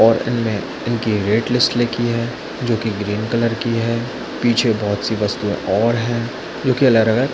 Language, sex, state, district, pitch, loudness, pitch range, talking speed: Hindi, male, Chhattisgarh, Bilaspur, 115 Hz, -19 LUFS, 110-120 Hz, 170 wpm